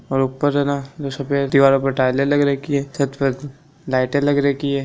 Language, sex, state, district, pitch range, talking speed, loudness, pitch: Marwari, male, Rajasthan, Nagaur, 135-140 Hz, 185 wpm, -19 LUFS, 140 Hz